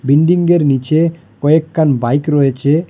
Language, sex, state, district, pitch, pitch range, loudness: Bengali, male, Assam, Hailakandi, 155 Hz, 140-165 Hz, -13 LUFS